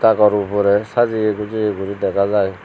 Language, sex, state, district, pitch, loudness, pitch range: Chakma, male, Tripura, Unakoti, 105 Hz, -17 LUFS, 100-110 Hz